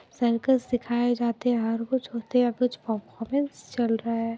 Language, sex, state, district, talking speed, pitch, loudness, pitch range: Hindi, female, Bihar, Muzaffarpur, 165 wpm, 240 Hz, -26 LUFS, 230-250 Hz